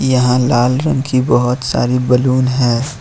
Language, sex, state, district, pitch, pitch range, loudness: Hindi, male, Jharkhand, Ranchi, 125 Hz, 125-130 Hz, -14 LUFS